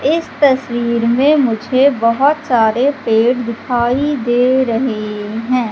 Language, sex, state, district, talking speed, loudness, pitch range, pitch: Hindi, female, Madhya Pradesh, Katni, 115 wpm, -14 LUFS, 230-270 Hz, 245 Hz